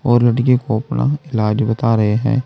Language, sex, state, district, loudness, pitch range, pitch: Hindi, male, Uttar Pradesh, Saharanpur, -16 LUFS, 110-130 Hz, 120 Hz